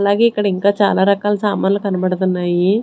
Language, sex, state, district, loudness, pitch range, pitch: Telugu, female, Andhra Pradesh, Sri Satya Sai, -16 LUFS, 185-205 Hz, 200 Hz